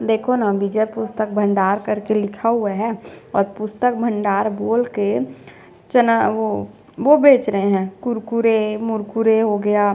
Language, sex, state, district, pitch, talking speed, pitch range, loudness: Hindi, female, Chhattisgarh, Jashpur, 215 Hz, 145 wpm, 205-230 Hz, -19 LUFS